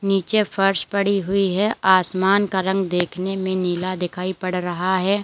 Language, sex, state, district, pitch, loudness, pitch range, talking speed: Hindi, female, Uttar Pradesh, Lalitpur, 190 Hz, -20 LUFS, 185-195 Hz, 170 wpm